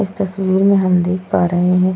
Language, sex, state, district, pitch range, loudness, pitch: Hindi, female, Goa, North and South Goa, 180-195 Hz, -15 LUFS, 185 Hz